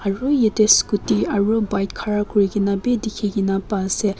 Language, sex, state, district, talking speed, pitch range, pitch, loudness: Nagamese, female, Nagaland, Kohima, 140 wpm, 200-220 Hz, 205 Hz, -19 LUFS